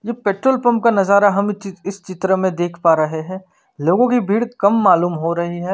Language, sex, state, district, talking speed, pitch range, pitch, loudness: Hindi, male, Chandigarh, Chandigarh, 230 wpm, 175-210 Hz, 195 Hz, -17 LUFS